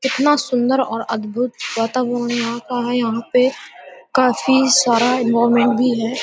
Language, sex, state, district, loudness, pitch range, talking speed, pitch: Hindi, female, Uttar Pradesh, Hamirpur, -17 LUFS, 235-255 Hz, 145 wpm, 245 Hz